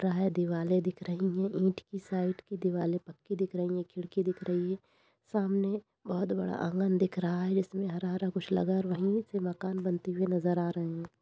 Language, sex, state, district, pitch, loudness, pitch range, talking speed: Hindi, female, Uttar Pradesh, Budaun, 185 Hz, -32 LUFS, 175-190 Hz, 220 wpm